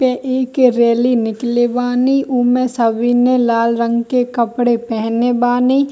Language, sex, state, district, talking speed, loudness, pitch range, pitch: Hindi, female, Bihar, Kishanganj, 140 wpm, -15 LUFS, 235-255 Hz, 245 Hz